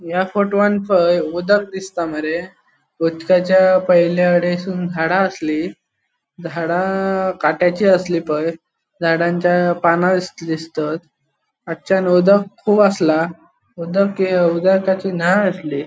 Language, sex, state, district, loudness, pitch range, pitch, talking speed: Konkani, male, Goa, North and South Goa, -17 LUFS, 165-190 Hz, 175 Hz, 100 wpm